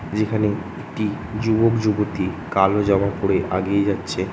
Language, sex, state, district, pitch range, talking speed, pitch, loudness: Bengali, male, West Bengal, North 24 Parganas, 95-105 Hz, 125 wpm, 100 Hz, -21 LUFS